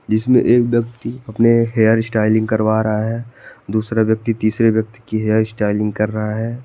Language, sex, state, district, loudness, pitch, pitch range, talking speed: Hindi, male, Madhya Pradesh, Bhopal, -17 LUFS, 110 Hz, 110-115 Hz, 170 wpm